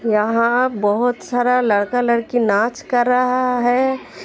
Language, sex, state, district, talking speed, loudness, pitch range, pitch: Hindi, female, Uttar Pradesh, Hamirpur, 125 wpm, -17 LUFS, 230-250 Hz, 245 Hz